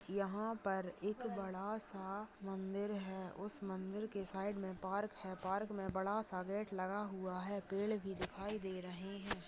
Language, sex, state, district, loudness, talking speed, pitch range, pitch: Hindi, female, Maharashtra, Dhule, -43 LUFS, 175 wpm, 190-205 Hz, 195 Hz